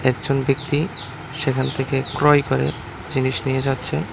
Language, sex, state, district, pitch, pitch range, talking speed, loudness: Bengali, male, Tripura, West Tripura, 135 Hz, 130-145 Hz, 130 wpm, -21 LUFS